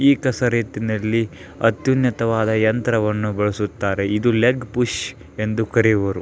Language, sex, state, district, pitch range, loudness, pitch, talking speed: Kannada, male, Karnataka, Belgaum, 105-120 Hz, -20 LUFS, 110 Hz, 115 wpm